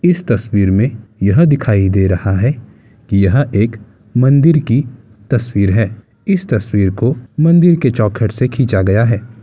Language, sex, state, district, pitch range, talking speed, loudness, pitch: Hindi, male, Bihar, Gaya, 105-130 Hz, 160 wpm, -13 LUFS, 115 Hz